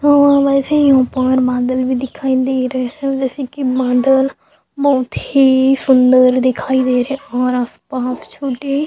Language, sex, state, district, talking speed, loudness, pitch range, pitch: Hindi, female, Chhattisgarh, Sukma, 160 wpm, -15 LUFS, 255-275 Hz, 260 Hz